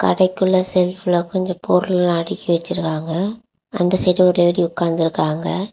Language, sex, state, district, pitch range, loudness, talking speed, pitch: Tamil, female, Tamil Nadu, Kanyakumari, 170-185 Hz, -18 LUFS, 115 wpm, 180 Hz